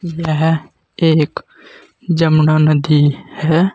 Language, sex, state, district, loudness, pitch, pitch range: Hindi, male, Uttar Pradesh, Saharanpur, -15 LUFS, 160 Hz, 155-175 Hz